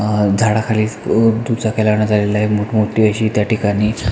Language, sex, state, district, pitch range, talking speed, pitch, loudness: Marathi, male, Maharashtra, Pune, 105-110 Hz, 190 wpm, 105 Hz, -16 LUFS